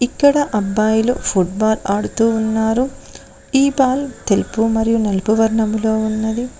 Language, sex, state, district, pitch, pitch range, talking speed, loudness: Telugu, female, Telangana, Mahabubabad, 220 Hz, 215-245 Hz, 110 wpm, -17 LUFS